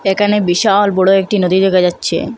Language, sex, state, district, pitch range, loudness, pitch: Bengali, female, Assam, Hailakandi, 185-205 Hz, -12 LUFS, 195 Hz